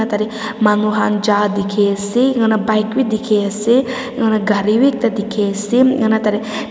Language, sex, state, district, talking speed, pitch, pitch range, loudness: Nagamese, female, Nagaland, Dimapur, 195 wpm, 215 Hz, 210-230 Hz, -16 LUFS